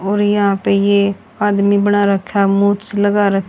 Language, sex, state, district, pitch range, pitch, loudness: Hindi, female, Haryana, Charkhi Dadri, 200-205 Hz, 200 Hz, -15 LUFS